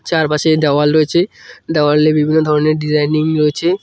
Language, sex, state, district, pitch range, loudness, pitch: Bengali, male, West Bengal, Cooch Behar, 150-160 Hz, -14 LUFS, 155 Hz